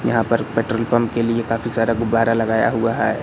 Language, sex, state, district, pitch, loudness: Hindi, male, Madhya Pradesh, Katni, 115 Hz, -19 LUFS